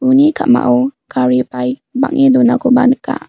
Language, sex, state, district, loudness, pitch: Garo, female, Meghalaya, West Garo Hills, -13 LUFS, 250 Hz